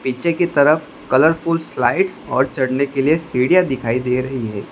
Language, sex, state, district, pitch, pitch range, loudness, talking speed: Hindi, male, Gujarat, Valsad, 135 Hz, 130-165 Hz, -17 LUFS, 180 wpm